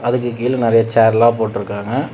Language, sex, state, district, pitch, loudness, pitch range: Tamil, male, Tamil Nadu, Namakkal, 115 Hz, -15 LUFS, 110-120 Hz